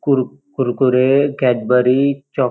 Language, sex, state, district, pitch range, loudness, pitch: Marathi, male, Maharashtra, Dhule, 125-140 Hz, -16 LUFS, 130 Hz